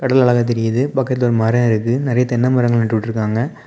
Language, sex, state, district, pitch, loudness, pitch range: Tamil, male, Tamil Nadu, Kanyakumari, 120 Hz, -16 LUFS, 115-130 Hz